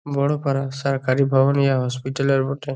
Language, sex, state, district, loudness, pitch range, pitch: Bengali, male, West Bengal, Jalpaiguri, -20 LUFS, 135-140 Hz, 135 Hz